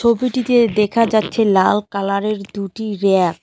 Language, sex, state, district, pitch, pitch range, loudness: Bengali, female, West Bengal, Cooch Behar, 210 Hz, 200-230 Hz, -17 LUFS